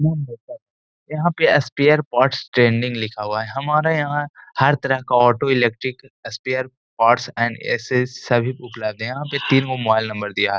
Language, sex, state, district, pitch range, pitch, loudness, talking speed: Hindi, male, Bihar, Gaya, 115-140 Hz, 130 Hz, -19 LUFS, 160 wpm